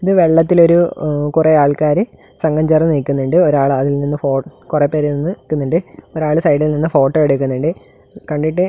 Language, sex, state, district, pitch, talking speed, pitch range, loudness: Malayalam, male, Kerala, Kasaragod, 155 Hz, 160 wpm, 145-165 Hz, -15 LUFS